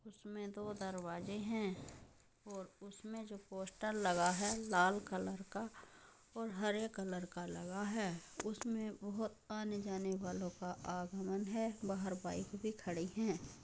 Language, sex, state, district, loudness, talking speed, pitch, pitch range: Hindi, female, Uttar Pradesh, Jyotiba Phule Nagar, -42 LUFS, 140 wpm, 200 Hz, 185-215 Hz